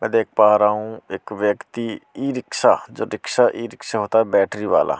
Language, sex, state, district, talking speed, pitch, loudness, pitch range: Hindi, male, Delhi, New Delhi, 215 wpm, 105 Hz, -20 LUFS, 105-115 Hz